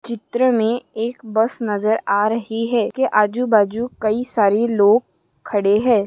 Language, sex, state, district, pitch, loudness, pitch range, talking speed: Hindi, female, Maharashtra, Solapur, 220 Hz, -18 LUFS, 210-235 Hz, 160 wpm